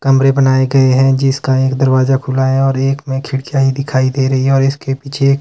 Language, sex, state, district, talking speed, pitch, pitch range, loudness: Hindi, male, Himachal Pradesh, Shimla, 245 wpm, 135 Hz, 130-135 Hz, -13 LUFS